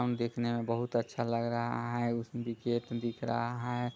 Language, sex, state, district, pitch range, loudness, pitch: Hindi, male, Bihar, Muzaffarpur, 115-120 Hz, -34 LUFS, 120 Hz